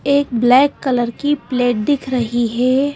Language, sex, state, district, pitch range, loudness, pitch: Hindi, female, Madhya Pradesh, Bhopal, 240-280 Hz, -16 LUFS, 255 Hz